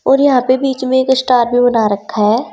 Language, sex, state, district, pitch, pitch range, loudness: Hindi, female, Uttar Pradesh, Saharanpur, 255 Hz, 225-260 Hz, -13 LUFS